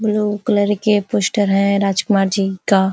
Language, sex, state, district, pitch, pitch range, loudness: Hindi, female, Uttar Pradesh, Ghazipur, 200 Hz, 195-210 Hz, -17 LUFS